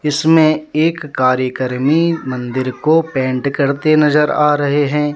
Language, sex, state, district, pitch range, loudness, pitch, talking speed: Hindi, male, Jharkhand, Deoghar, 130-155 Hz, -15 LUFS, 150 Hz, 130 wpm